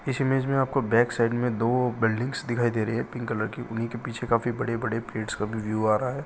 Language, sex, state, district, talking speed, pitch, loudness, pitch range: Hindi, male, Bihar, Bhagalpur, 270 wpm, 120 Hz, -26 LUFS, 115-125 Hz